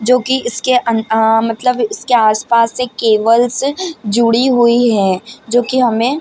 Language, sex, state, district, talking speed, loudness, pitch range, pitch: Hindi, female, Bihar, Madhepura, 165 wpm, -13 LUFS, 225-250 Hz, 235 Hz